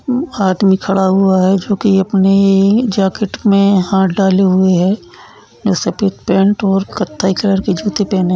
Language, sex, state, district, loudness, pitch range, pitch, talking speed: Hindi, female, Uttarakhand, Tehri Garhwal, -13 LUFS, 190-200 Hz, 195 Hz, 165 wpm